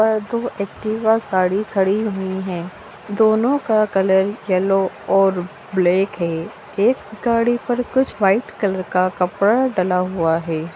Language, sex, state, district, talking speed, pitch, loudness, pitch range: Bhojpuri, female, Bihar, Saran, 135 wpm, 195 Hz, -19 LUFS, 185-220 Hz